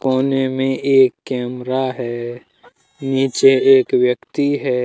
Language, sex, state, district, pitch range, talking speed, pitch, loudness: Hindi, male, Jharkhand, Deoghar, 125-135 Hz, 125 wpm, 130 Hz, -17 LUFS